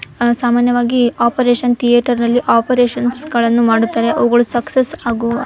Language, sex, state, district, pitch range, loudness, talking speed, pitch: Kannada, female, Karnataka, Bijapur, 235-245 Hz, -14 LUFS, 130 wpm, 240 Hz